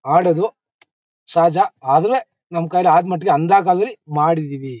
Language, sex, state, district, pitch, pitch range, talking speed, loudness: Kannada, male, Karnataka, Mysore, 175 Hz, 155-195 Hz, 125 wpm, -17 LUFS